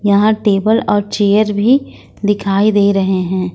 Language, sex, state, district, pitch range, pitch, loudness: Hindi, female, Jharkhand, Ranchi, 200-215 Hz, 205 Hz, -14 LUFS